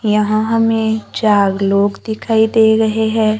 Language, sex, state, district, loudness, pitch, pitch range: Hindi, female, Maharashtra, Gondia, -14 LUFS, 220 Hz, 210-220 Hz